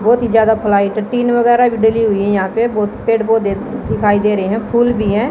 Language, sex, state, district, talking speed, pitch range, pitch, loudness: Hindi, female, Haryana, Jhajjar, 250 wpm, 205-235 Hz, 220 Hz, -14 LUFS